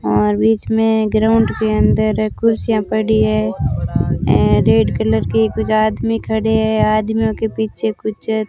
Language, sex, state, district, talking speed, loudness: Hindi, female, Rajasthan, Bikaner, 155 wpm, -16 LUFS